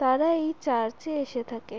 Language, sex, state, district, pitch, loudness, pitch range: Bengali, female, West Bengal, Jalpaiguri, 260 Hz, -28 LUFS, 235-315 Hz